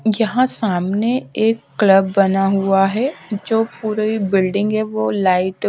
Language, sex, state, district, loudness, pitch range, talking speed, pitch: Hindi, female, Haryana, Rohtak, -17 LUFS, 195-220 Hz, 145 wpm, 205 Hz